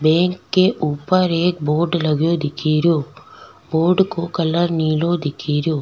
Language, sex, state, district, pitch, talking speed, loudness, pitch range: Rajasthani, female, Rajasthan, Nagaur, 165 Hz, 125 wpm, -18 LUFS, 155-175 Hz